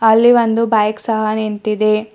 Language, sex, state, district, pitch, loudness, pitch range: Kannada, female, Karnataka, Bidar, 215 Hz, -15 LUFS, 215-225 Hz